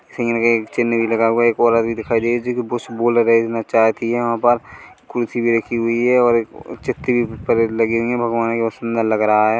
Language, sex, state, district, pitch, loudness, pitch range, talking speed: Hindi, male, Chhattisgarh, Korba, 115 Hz, -18 LUFS, 115-120 Hz, 255 wpm